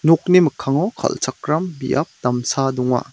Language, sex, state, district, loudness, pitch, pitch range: Garo, male, Meghalaya, West Garo Hills, -19 LUFS, 140 Hz, 125-165 Hz